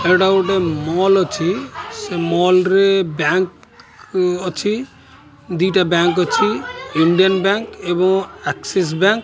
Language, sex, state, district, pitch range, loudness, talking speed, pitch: Odia, male, Odisha, Khordha, 175-195 Hz, -17 LUFS, 115 wpm, 185 Hz